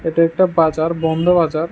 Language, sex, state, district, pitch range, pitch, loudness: Bengali, male, Tripura, West Tripura, 160-170 Hz, 165 Hz, -16 LUFS